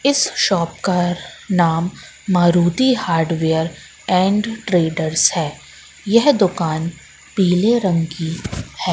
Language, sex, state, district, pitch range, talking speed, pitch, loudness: Hindi, female, Madhya Pradesh, Katni, 165-205 Hz, 100 wpm, 175 Hz, -18 LUFS